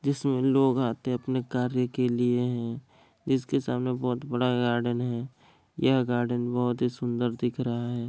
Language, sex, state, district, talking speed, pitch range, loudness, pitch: Hindi, male, Bihar, Kishanganj, 170 wpm, 120-130 Hz, -27 LUFS, 125 Hz